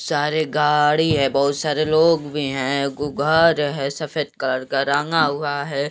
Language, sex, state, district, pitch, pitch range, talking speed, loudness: Hindi, male, Uttar Pradesh, Deoria, 145 Hz, 140-155 Hz, 170 wpm, -20 LUFS